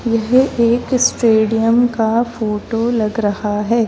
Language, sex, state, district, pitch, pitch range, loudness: Hindi, female, Uttar Pradesh, Lalitpur, 230 Hz, 220-235 Hz, -15 LUFS